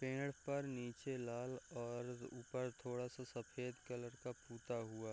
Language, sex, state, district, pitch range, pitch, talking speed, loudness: Hindi, male, Chhattisgarh, Raigarh, 120-130 Hz, 125 Hz, 175 wpm, -48 LUFS